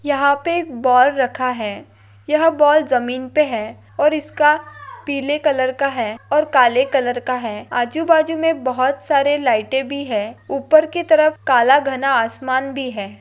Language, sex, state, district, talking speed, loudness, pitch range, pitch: Hindi, female, Maharashtra, Dhule, 175 wpm, -17 LUFS, 245-300 Hz, 275 Hz